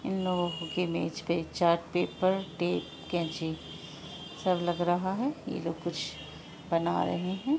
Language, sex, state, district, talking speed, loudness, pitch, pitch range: Hindi, female, Bihar, Araria, 150 wpm, -31 LUFS, 175 Hz, 165-180 Hz